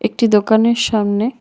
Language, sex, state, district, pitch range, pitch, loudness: Bengali, female, Tripura, West Tripura, 210-235 Hz, 220 Hz, -15 LUFS